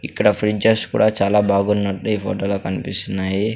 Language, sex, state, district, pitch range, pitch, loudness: Telugu, male, Andhra Pradesh, Sri Satya Sai, 100-105 Hz, 100 Hz, -19 LUFS